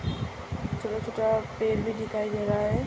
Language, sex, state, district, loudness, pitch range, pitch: Hindi, female, Uttar Pradesh, Ghazipur, -29 LUFS, 210-220 Hz, 220 Hz